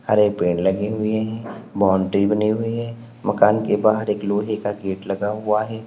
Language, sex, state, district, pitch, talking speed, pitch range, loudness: Hindi, male, Uttar Pradesh, Lalitpur, 105 Hz, 195 wpm, 100-110 Hz, -21 LUFS